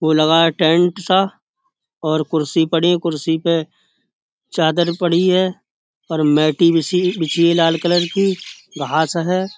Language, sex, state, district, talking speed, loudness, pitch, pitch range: Hindi, male, Uttar Pradesh, Budaun, 145 wpm, -17 LUFS, 170 Hz, 160-180 Hz